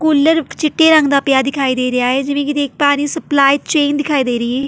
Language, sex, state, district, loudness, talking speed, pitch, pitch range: Punjabi, female, Delhi, New Delhi, -14 LUFS, 270 wpm, 285 Hz, 270-300 Hz